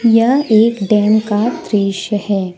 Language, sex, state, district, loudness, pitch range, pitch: Hindi, female, Jharkhand, Deoghar, -14 LUFS, 205-230 Hz, 215 Hz